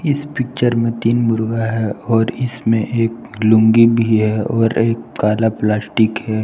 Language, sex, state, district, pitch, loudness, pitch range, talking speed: Hindi, male, Jharkhand, Palamu, 115 Hz, -16 LUFS, 110-115 Hz, 160 wpm